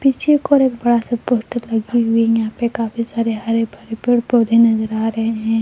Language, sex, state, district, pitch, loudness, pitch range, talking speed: Hindi, female, Jharkhand, Palamu, 230 Hz, -17 LUFS, 225-240 Hz, 235 wpm